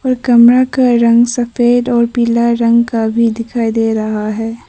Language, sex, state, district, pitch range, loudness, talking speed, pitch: Hindi, female, Arunachal Pradesh, Papum Pare, 230-245 Hz, -12 LUFS, 165 wpm, 235 Hz